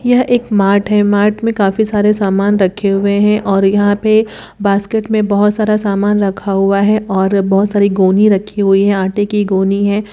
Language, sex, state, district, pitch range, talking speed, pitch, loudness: Hindi, female, Bihar, Araria, 195-210 Hz, 200 wpm, 205 Hz, -13 LUFS